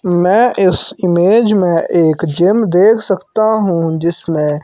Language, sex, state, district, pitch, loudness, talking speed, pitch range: Hindi, male, Himachal Pradesh, Shimla, 180 Hz, -12 LUFS, 130 wpm, 170-215 Hz